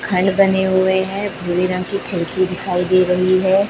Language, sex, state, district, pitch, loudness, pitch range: Hindi, female, Chhattisgarh, Raipur, 185 Hz, -17 LUFS, 180-190 Hz